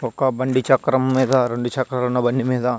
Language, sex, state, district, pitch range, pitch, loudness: Telugu, male, Andhra Pradesh, Visakhapatnam, 125-130 Hz, 130 Hz, -19 LUFS